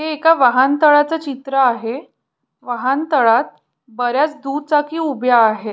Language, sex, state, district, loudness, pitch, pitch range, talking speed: Marathi, female, Maharashtra, Pune, -16 LUFS, 270 Hz, 245-300 Hz, 115 wpm